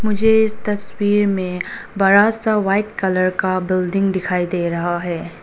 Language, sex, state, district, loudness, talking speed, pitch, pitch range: Hindi, female, Arunachal Pradesh, Papum Pare, -18 LUFS, 155 wpm, 195 Hz, 180-205 Hz